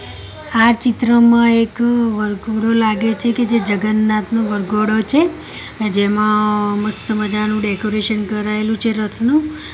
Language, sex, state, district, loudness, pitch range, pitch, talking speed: Gujarati, female, Gujarat, Gandhinagar, -16 LUFS, 210-230 Hz, 215 Hz, 110 wpm